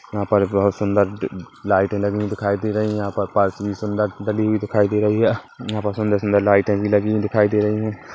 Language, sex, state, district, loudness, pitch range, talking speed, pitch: Hindi, male, Chhattisgarh, Kabirdham, -20 LUFS, 100-105 Hz, 250 wpm, 105 Hz